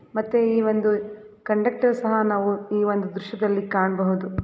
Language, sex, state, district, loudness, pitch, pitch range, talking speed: Kannada, female, Karnataka, Belgaum, -23 LUFS, 210 Hz, 200-220 Hz, 135 wpm